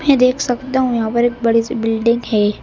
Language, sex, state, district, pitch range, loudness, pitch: Hindi, male, Madhya Pradesh, Bhopal, 230-255 Hz, -16 LUFS, 240 Hz